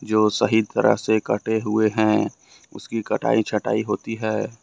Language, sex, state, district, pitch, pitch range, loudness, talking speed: Hindi, male, Jharkhand, Ranchi, 110 Hz, 105-110 Hz, -22 LUFS, 155 wpm